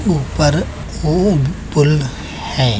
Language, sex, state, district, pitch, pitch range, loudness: Hindi, male, Uttar Pradesh, Budaun, 145 Hz, 135-155 Hz, -16 LUFS